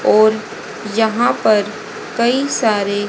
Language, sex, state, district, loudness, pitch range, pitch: Hindi, female, Haryana, Rohtak, -16 LUFS, 210-235 Hz, 215 Hz